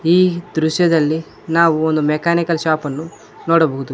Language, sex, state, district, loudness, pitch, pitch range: Kannada, male, Karnataka, Koppal, -16 LUFS, 160 Hz, 155-170 Hz